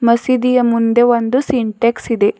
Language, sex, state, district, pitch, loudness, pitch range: Kannada, female, Karnataka, Bidar, 235 Hz, -14 LUFS, 230-250 Hz